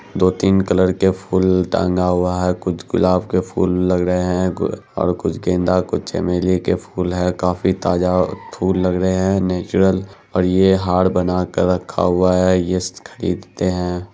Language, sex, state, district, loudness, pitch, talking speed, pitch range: Hindi, male, Bihar, Araria, -18 LUFS, 90 Hz, 170 wpm, 90-95 Hz